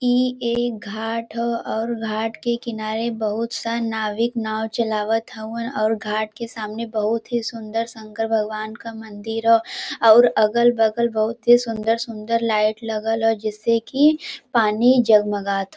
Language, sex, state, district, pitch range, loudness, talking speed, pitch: Bhojpuri, female, Uttar Pradesh, Varanasi, 215-235 Hz, -21 LUFS, 145 wpm, 225 Hz